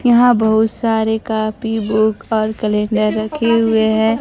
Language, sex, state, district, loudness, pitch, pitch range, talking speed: Hindi, female, Bihar, Kaimur, -16 LUFS, 220 Hz, 215-225 Hz, 140 wpm